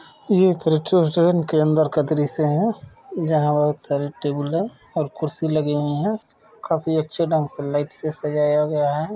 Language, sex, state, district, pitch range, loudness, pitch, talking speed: Kumaoni, male, Uttarakhand, Uttarkashi, 150-165 Hz, -21 LUFS, 155 Hz, 175 wpm